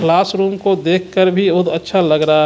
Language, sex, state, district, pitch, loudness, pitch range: Hindi, male, Jharkhand, Ranchi, 185 Hz, -15 LUFS, 165-195 Hz